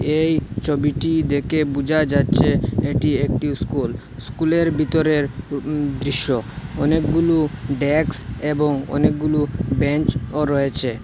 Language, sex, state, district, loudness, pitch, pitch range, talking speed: Bengali, male, Assam, Hailakandi, -20 LUFS, 145 Hz, 135-155 Hz, 100 wpm